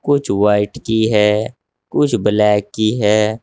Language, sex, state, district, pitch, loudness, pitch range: Hindi, male, Uttar Pradesh, Saharanpur, 105 Hz, -15 LUFS, 105-110 Hz